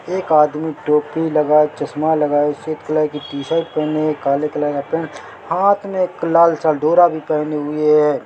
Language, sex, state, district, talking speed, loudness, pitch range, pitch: Hindi, male, Chhattisgarh, Bilaspur, 190 wpm, -17 LUFS, 150-160 Hz, 155 Hz